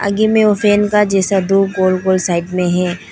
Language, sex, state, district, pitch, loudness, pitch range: Hindi, female, Arunachal Pradesh, Lower Dibang Valley, 195 Hz, -14 LUFS, 185-205 Hz